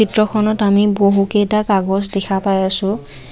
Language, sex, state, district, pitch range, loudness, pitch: Assamese, female, Assam, Kamrup Metropolitan, 195-210 Hz, -16 LUFS, 200 Hz